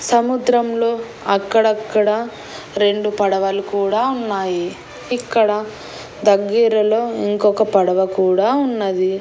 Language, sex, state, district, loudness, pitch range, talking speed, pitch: Telugu, female, Andhra Pradesh, Annamaya, -17 LUFS, 195-230 Hz, 85 wpm, 210 Hz